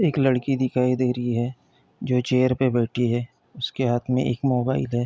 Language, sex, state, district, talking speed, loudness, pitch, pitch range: Hindi, male, Uttar Pradesh, Deoria, 200 wpm, -23 LUFS, 125 Hz, 120-130 Hz